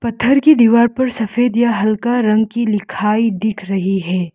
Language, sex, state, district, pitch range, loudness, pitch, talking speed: Hindi, female, Arunachal Pradesh, Lower Dibang Valley, 210-240 Hz, -15 LUFS, 220 Hz, 180 wpm